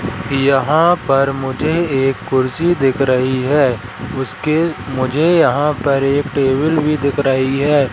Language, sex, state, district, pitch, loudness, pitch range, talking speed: Hindi, male, Madhya Pradesh, Katni, 135 Hz, -15 LUFS, 130-150 Hz, 135 wpm